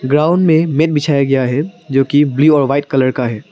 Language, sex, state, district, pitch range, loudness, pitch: Hindi, male, Arunachal Pradesh, Papum Pare, 135-155 Hz, -13 LUFS, 145 Hz